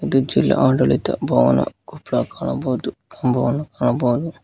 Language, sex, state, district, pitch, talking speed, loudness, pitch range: Kannada, male, Karnataka, Koppal, 125 Hz, 110 wpm, -19 LUFS, 120-140 Hz